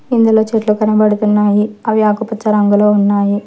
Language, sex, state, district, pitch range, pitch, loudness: Telugu, male, Telangana, Hyderabad, 210-220 Hz, 210 Hz, -13 LUFS